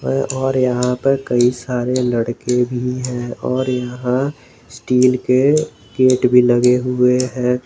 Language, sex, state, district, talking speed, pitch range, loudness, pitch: Hindi, male, Jharkhand, Garhwa, 135 wpm, 125-130 Hz, -17 LUFS, 125 Hz